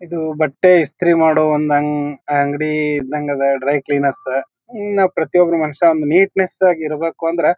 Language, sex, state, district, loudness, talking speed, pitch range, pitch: Kannada, male, Karnataka, Bijapur, -16 LUFS, 140 wpm, 145-170 Hz, 155 Hz